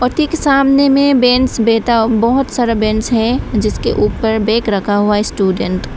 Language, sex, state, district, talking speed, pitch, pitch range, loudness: Hindi, female, Tripura, West Tripura, 160 wpm, 230 Hz, 220-260 Hz, -13 LUFS